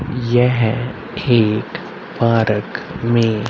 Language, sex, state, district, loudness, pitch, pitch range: Hindi, male, Haryana, Rohtak, -17 LUFS, 115 Hz, 110-125 Hz